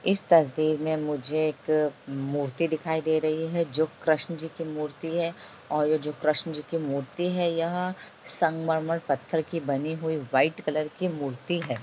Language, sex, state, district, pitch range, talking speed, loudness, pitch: Hindi, female, Bihar, Lakhisarai, 150-165 Hz, 170 wpm, -27 LUFS, 155 Hz